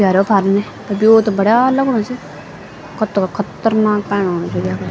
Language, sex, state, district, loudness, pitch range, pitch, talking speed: Garhwali, female, Uttarakhand, Tehri Garhwal, -15 LUFS, 195-220 Hz, 205 Hz, 195 wpm